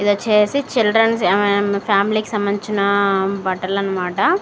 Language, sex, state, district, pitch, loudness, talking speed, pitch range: Telugu, female, Andhra Pradesh, Srikakulam, 205 Hz, -17 LUFS, 80 wpm, 200-215 Hz